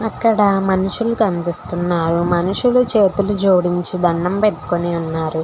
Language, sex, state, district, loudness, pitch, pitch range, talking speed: Telugu, female, Telangana, Hyderabad, -17 LUFS, 185 Hz, 175-205 Hz, 100 wpm